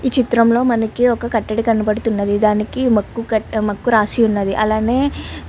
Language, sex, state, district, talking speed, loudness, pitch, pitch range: Telugu, male, Andhra Pradesh, Guntur, 175 wpm, -17 LUFS, 225 Hz, 215-235 Hz